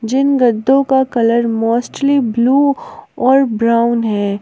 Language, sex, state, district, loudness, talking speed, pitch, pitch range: Hindi, female, Jharkhand, Palamu, -14 LUFS, 120 wpm, 240 Hz, 230-270 Hz